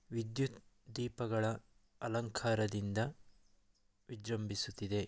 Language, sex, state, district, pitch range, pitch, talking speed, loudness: Kannada, male, Karnataka, Mysore, 100-115 Hz, 110 Hz, 70 wpm, -39 LUFS